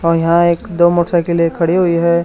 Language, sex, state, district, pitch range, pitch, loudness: Hindi, male, Haryana, Charkhi Dadri, 170-175 Hz, 170 Hz, -13 LUFS